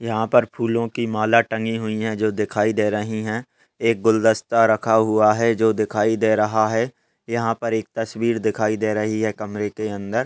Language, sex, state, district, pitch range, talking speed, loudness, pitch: Hindi, male, Maharashtra, Sindhudurg, 110-115 Hz, 200 wpm, -21 LUFS, 110 Hz